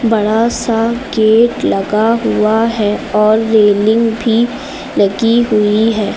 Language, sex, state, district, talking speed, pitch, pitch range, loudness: Hindi, female, Uttar Pradesh, Lucknow, 115 wpm, 225 Hz, 215-230 Hz, -12 LUFS